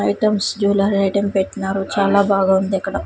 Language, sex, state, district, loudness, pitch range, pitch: Telugu, female, Andhra Pradesh, Sri Satya Sai, -17 LUFS, 195-200 Hz, 195 Hz